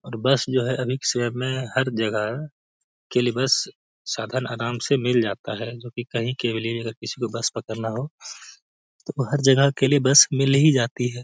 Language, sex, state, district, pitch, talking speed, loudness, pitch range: Hindi, male, Bihar, Gaya, 125 Hz, 220 wpm, -22 LUFS, 115-135 Hz